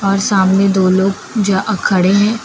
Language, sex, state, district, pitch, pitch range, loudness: Hindi, female, Uttar Pradesh, Lucknow, 195 Hz, 190-205 Hz, -13 LUFS